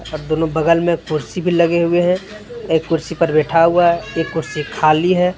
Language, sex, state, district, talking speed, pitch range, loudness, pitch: Hindi, male, Jharkhand, Deoghar, 200 wpm, 160-175 Hz, -16 LUFS, 170 Hz